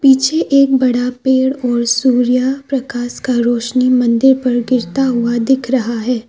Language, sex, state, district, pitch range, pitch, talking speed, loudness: Hindi, female, Assam, Kamrup Metropolitan, 240-265 Hz, 255 Hz, 150 wpm, -14 LUFS